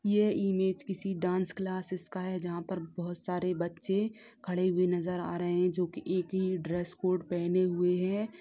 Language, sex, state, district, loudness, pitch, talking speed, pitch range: Hindi, female, Bihar, Sitamarhi, -32 LUFS, 185 Hz, 195 wpm, 180-190 Hz